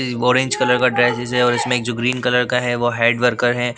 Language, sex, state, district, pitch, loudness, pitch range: Hindi, male, Bihar, Katihar, 120 Hz, -17 LUFS, 120-125 Hz